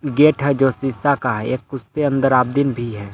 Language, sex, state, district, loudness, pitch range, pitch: Hindi, male, Jharkhand, Palamu, -18 LUFS, 125-140 Hz, 135 Hz